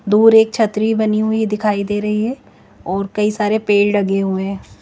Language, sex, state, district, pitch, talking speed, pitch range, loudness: Hindi, female, Chandigarh, Chandigarh, 210 Hz, 210 wpm, 205-220 Hz, -16 LUFS